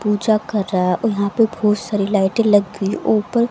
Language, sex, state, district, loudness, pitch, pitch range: Hindi, female, Haryana, Rohtak, -18 LUFS, 210 Hz, 200-220 Hz